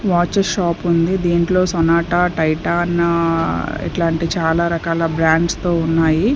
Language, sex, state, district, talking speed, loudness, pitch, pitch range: Telugu, female, Andhra Pradesh, Sri Satya Sai, 105 wpm, -17 LUFS, 170 Hz, 165-175 Hz